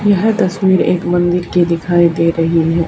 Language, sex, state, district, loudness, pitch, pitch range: Hindi, female, Haryana, Charkhi Dadri, -13 LUFS, 175 Hz, 170-185 Hz